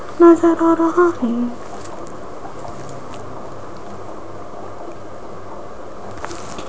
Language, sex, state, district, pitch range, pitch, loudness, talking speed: Hindi, female, Rajasthan, Jaipur, 255-340 Hz, 330 Hz, -15 LUFS, 35 wpm